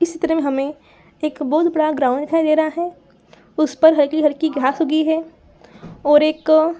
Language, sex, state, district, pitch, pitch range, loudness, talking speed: Hindi, female, Bihar, Saran, 310 Hz, 295-320 Hz, -18 LUFS, 205 wpm